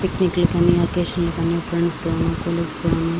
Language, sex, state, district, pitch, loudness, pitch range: Telugu, female, Andhra Pradesh, Srikakulam, 170 Hz, -20 LUFS, 170-175 Hz